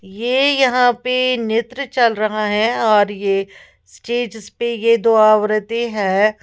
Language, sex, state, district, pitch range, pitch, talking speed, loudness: Hindi, female, Uttar Pradesh, Lalitpur, 215-240 Hz, 230 Hz, 140 wpm, -16 LUFS